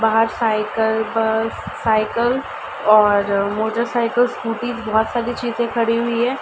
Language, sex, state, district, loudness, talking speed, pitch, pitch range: Hindi, female, Uttar Pradesh, Ghazipur, -19 LUFS, 120 wpm, 225 Hz, 220-235 Hz